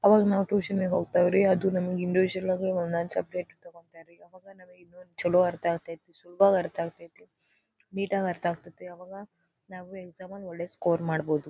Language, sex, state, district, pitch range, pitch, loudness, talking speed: Kannada, female, Karnataka, Dharwad, 170-190 Hz, 180 Hz, -27 LUFS, 165 wpm